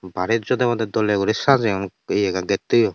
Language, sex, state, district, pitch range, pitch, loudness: Chakma, male, Tripura, Unakoti, 100-120 Hz, 110 Hz, -20 LUFS